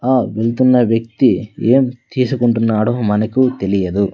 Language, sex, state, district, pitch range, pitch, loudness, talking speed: Telugu, male, Andhra Pradesh, Sri Satya Sai, 110-125 Hz, 115 Hz, -15 LUFS, 100 wpm